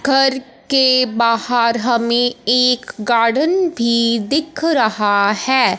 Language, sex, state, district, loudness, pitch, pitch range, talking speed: Hindi, female, Punjab, Fazilka, -15 LUFS, 245 Hz, 230-265 Hz, 105 wpm